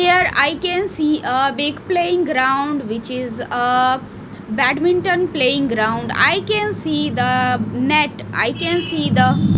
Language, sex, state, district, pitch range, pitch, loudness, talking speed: English, female, Punjab, Fazilka, 250-350 Hz, 280 Hz, -17 LUFS, 145 wpm